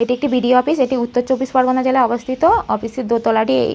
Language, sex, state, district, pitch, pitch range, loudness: Bengali, female, West Bengal, North 24 Parganas, 255 Hz, 240-260 Hz, -16 LUFS